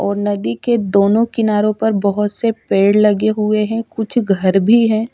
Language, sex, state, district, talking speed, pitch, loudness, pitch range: Hindi, female, Chhattisgarh, Raipur, 185 wpm, 210 Hz, -15 LUFS, 200-225 Hz